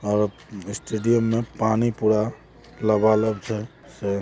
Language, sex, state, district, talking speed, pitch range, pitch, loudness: Hindi, male, Jharkhand, Jamtara, 100 wpm, 105-115 Hz, 110 Hz, -23 LUFS